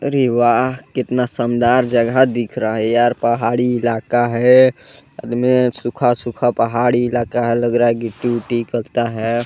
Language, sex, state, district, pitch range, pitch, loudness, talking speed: Hindi, male, Chhattisgarh, Balrampur, 120-125 Hz, 120 Hz, -16 LUFS, 160 wpm